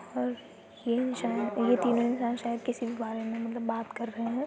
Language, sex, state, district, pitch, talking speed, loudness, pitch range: Hindi, female, Uttarakhand, Uttarkashi, 235 Hz, 200 wpm, -31 LUFS, 225-240 Hz